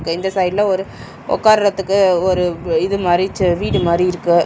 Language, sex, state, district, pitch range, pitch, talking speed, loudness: Tamil, male, Tamil Nadu, Chennai, 175-195 Hz, 185 Hz, 150 wpm, -16 LUFS